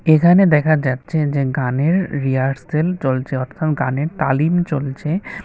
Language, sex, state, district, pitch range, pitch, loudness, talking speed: Bengali, male, Tripura, West Tripura, 135-165 Hz, 150 Hz, -18 LUFS, 120 wpm